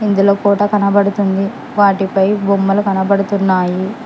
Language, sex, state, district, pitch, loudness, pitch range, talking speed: Telugu, male, Telangana, Hyderabad, 200 Hz, -14 LUFS, 195-205 Hz, 90 wpm